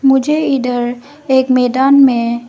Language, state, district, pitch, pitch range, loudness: Hindi, Arunachal Pradesh, Lower Dibang Valley, 260 Hz, 245-275 Hz, -12 LUFS